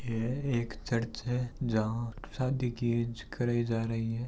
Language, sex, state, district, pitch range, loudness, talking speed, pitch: Hindi, male, Rajasthan, Churu, 115-125 Hz, -33 LUFS, 170 wpm, 120 Hz